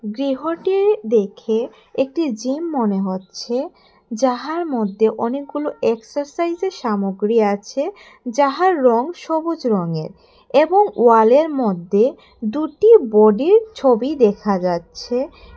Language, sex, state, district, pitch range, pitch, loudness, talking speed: Bengali, female, Tripura, West Tripura, 215-320 Hz, 250 Hz, -18 LUFS, 90 wpm